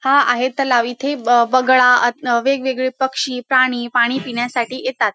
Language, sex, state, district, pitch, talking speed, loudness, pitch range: Marathi, female, Maharashtra, Dhule, 255 Hz, 150 wpm, -16 LUFS, 240-265 Hz